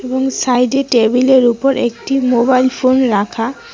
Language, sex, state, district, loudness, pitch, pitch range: Bengali, female, West Bengal, Cooch Behar, -13 LUFS, 255 Hz, 240-265 Hz